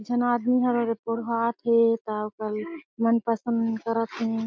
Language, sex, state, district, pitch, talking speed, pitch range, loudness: Chhattisgarhi, female, Chhattisgarh, Jashpur, 230 Hz, 185 wpm, 225-235 Hz, -25 LUFS